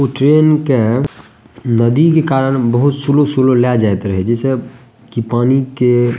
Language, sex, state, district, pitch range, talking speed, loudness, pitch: Maithili, male, Bihar, Madhepura, 120-140 Hz, 165 wpm, -13 LUFS, 125 Hz